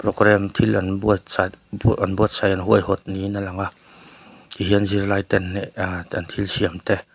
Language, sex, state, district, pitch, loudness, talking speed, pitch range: Mizo, male, Mizoram, Aizawl, 100 Hz, -21 LUFS, 150 wpm, 95-105 Hz